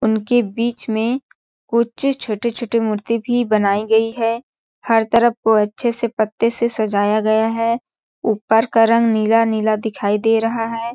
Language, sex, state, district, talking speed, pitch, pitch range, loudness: Hindi, female, Chhattisgarh, Balrampur, 160 wpm, 225 Hz, 220-235 Hz, -18 LUFS